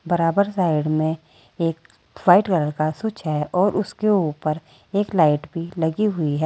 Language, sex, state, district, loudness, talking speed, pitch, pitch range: Hindi, female, Uttar Pradesh, Saharanpur, -21 LUFS, 165 wpm, 165 Hz, 155-195 Hz